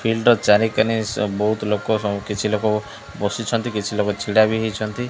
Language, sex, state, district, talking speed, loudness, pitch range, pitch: Odia, male, Odisha, Malkangiri, 175 wpm, -20 LUFS, 105-110 Hz, 105 Hz